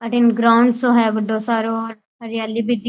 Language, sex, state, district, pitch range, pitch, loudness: Rajasthani, female, Rajasthan, Churu, 225-235 Hz, 230 Hz, -17 LUFS